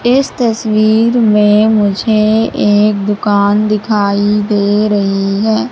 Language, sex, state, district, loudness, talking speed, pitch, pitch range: Hindi, female, Madhya Pradesh, Katni, -11 LUFS, 105 wpm, 210 Hz, 205-220 Hz